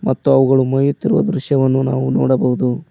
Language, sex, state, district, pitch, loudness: Kannada, male, Karnataka, Koppal, 130 Hz, -15 LUFS